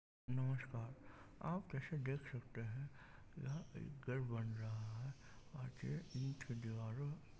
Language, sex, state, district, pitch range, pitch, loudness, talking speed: Hindi, male, Maharashtra, Chandrapur, 115-140 Hz, 130 Hz, -47 LUFS, 115 wpm